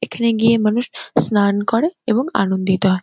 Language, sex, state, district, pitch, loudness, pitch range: Bengali, female, West Bengal, Kolkata, 220 Hz, -17 LUFS, 195-235 Hz